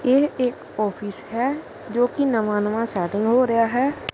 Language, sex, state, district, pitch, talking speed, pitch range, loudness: Punjabi, male, Punjab, Kapurthala, 230 Hz, 160 wpm, 210-255 Hz, -22 LUFS